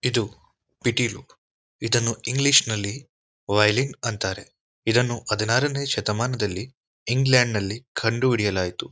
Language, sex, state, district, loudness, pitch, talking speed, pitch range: Kannada, male, Karnataka, Mysore, -23 LUFS, 115 Hz, 85 wpm, 105-130 Hz